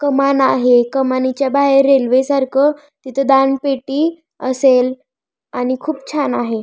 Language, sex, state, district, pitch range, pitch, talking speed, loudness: Marathi, female, Maharashtra, Pune, 260-280 Hz, 270 Hz, 110 wpm, -15 LUFS